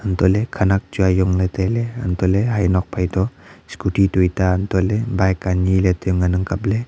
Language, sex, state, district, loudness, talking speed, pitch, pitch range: Wancho, male, Arunachal Pradesh, Longding, -19 LUFS, 210 wpm, 95 Hz, 95-100 Hz